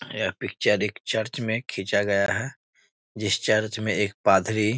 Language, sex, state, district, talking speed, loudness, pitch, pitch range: Hindi, male, Bihar, Muzaffarpur, 175 wpm, -25 LUFS, 110 Hz, 100-110 Hz